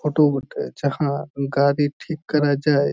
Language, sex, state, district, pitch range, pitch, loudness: Bengali, male, West Bengal, Jhargram, 140-150 Hz, 145 Hz, -21 LUFS